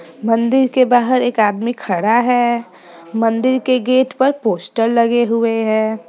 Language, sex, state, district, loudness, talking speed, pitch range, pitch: Hindi, female, Bihar, Sitamarhi, -15 LUFS, 155 wpm, 220-255 Hz, 235 Hz